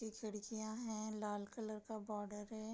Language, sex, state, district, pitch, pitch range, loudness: Hindi, female, Bihar, Sitamarhi, 215 Hz, 210-220 Hz, -46 LUFS